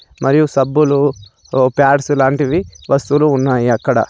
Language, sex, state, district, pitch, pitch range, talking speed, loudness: Telugu, male, Telangana, Adilabad, 135 Hz, 120-145 Hz, 115 wpm, -14 LUFS